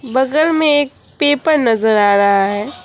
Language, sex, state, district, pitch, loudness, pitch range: Hindi, female, West Bengal, Alipurduar, 265 Hz, -14 LUFS, 205-295 Hz